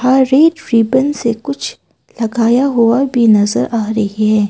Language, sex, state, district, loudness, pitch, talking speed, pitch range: Hindi, female, Arunachal Pradesh, Papum Pare, -13 LUFS, 235 Hz, 145 wpm, 220-265 Hz